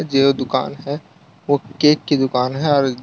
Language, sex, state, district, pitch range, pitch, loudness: Hindi, male, Gujarat, Valsad, 130-145 Hz, 140 Hz, -18 LUFS